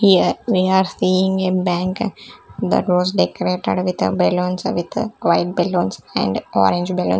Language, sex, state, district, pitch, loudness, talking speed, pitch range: English, female, Chandigarh, Chandigarh, 185 Hz, -18 LUFS, 140 wpm, 180-190 Hz